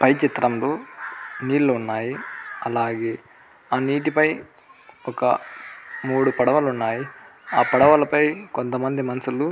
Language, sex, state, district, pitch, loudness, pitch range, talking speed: Telugu, male, Andhra Pradesh, Anantapur, 130 Hz, -22 LUFS, 125-145 Hz, 105 wpm